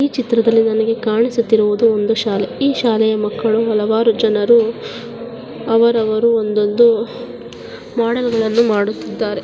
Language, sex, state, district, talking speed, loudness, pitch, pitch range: Kannada, female, Karnataka, Mysore, 95 wpm, -15 LUFS, 225 Hz, 220-235 Hz